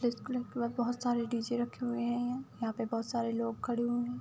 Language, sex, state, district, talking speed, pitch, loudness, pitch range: Hindi, female, Uttar Pradesh, Budaun, 240 wpm, 240 Hz, -35 LUFS, 235-245 Hz